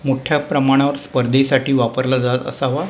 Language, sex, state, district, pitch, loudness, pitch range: Marathi, male, Maharashtra, Mumbai Suburban, 135 Hz, -17 LUFS, 130-140 Hz